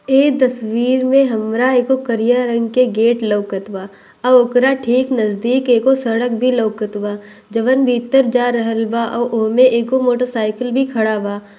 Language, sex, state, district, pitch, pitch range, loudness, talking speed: Bhojpuri, female, Bihar, Gopalganj, 240 Hz, 220-255 Hz, -15 LUFS, 170 wpm